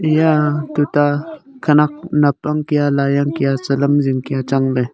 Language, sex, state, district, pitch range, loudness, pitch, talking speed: Wancho, male, Arunachal Pradesh, Longding, 140-150 Hz, -16 LUFS, 145 Hz, 145 wpm